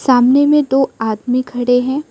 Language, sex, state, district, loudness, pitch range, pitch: Hindi, female, Arunachal Pradesh, Lower Dibang Valley, -14 LUFS, 245-270 Hz, 255 Hz